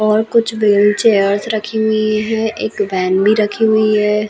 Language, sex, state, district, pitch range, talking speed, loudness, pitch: Hindi, female, Chhattisgarh, Balrampur, 205-220 Hz, 180 wpm, -14 LUFS, 215 Hz